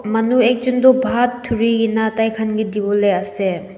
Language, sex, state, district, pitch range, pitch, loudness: Nagamese, female, Nagaland, Dimapur, 205-245 Hz, 225 Hz, -17 LUFS